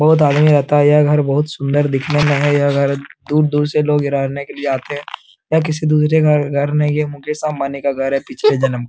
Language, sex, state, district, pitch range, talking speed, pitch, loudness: Hindi, male, Bihar, Jamui, 140-150 Hz, 255 wpm, 145 Hz, -16 LUFS